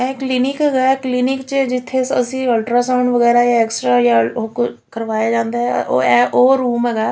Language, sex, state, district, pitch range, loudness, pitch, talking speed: Punjabi, female, Punjab, Fazilka, 225-260 Hz, -16 LUFS, 240 Hz, 170 wpm